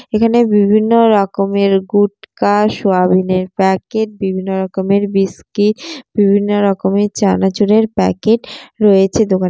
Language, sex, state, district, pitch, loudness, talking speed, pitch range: Bengali, female, West Bengal, Jalpaiguri, 200 Hz, -14 LUFS, 95 wpm, 190-215 Hz